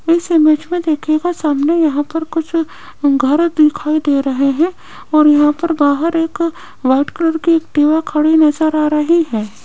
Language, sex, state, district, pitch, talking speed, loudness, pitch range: Hindi, female, Rajasthan, Jaipur, 310 Hz, 170 wpm, -14 LUFS, 295-330 Hz